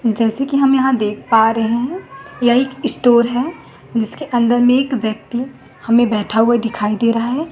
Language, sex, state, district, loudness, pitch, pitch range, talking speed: Hindi, female, Chhattisgarh, Raipur, -16 LUFS, 240 Hz, 225-265 Hz, 190 wpm